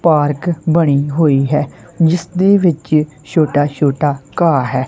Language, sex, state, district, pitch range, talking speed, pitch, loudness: Punjabi, male, Punjab, Kapurthala, 145-165 Hz, 125 wpm, 150 Hz, -14 LUFS